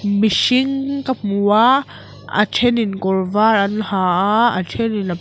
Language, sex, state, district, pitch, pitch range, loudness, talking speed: Mizo, female, Mizoram, Aizawl, 210 Hz, 200-240 Hz, -17 LUFS, 185 wpm